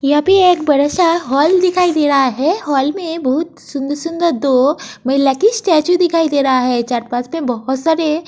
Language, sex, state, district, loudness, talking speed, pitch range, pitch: Hindi, female, Uttar Pradesh, Jyotiba Phule Nagar, -14 LUFS, 180 wpm, 270-335 Hz, 300 Hz